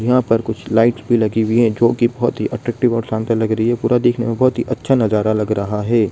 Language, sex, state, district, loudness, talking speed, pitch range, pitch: Hindi, male, Bihar, Begusarai, -17 LUFS, 265 wpm, 110-120 Hz, 115 Hz